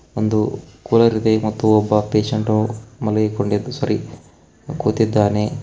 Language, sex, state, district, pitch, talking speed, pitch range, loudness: Kannada, male, Karnataka, Koppal, 110 Hz, 95 wpm, 105-115 Hz, -18 LUFS